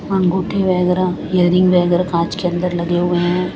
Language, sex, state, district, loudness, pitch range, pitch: Hindi, female, Chhattisgarh, Raipur, -16 LUFS, 175-185 Hz, 180 Hz